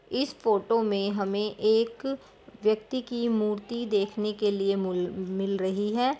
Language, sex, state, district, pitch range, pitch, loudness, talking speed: Hindi, female, Uttar Pradesh, Deoria, 200-235 Hz, 210 Hz, -28 LUFS, 145 wpm